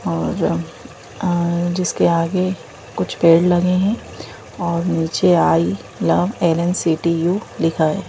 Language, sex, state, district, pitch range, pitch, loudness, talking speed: Hindi, female, Madhya Pradesh, Bhopal, 165-180 Hz, 170 Hz, -18 LUFS, 135 wpm